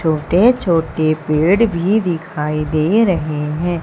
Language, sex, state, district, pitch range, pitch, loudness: Hindi, female, Madhya Pradesh, Umaria, 155-185 Hz, 165 Hz, -16 LUFS